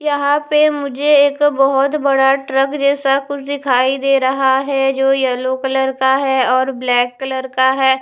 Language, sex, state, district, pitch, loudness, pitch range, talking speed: Hindi, female, Punjab, Fazilka, 270 Hz, -15 LUFS, 265-280 Hz, 165 wpm